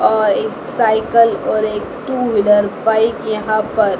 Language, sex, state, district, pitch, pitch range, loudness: Hindi, female, Madhya Pradesh, Dhar, 220 Hz, 215-230 Hz, -15 LUFS